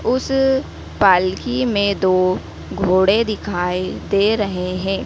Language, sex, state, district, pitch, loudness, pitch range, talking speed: Hindi, female, Madhya Pradesh, Dhar, 195 Hz, -18 LUFS, 185-230 Hz, 105 wpm